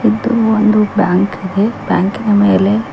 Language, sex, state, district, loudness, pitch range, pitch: Kannada, female, Karnataka, Koppal, -13 LUFS, 195-220 Hz, 210 Hz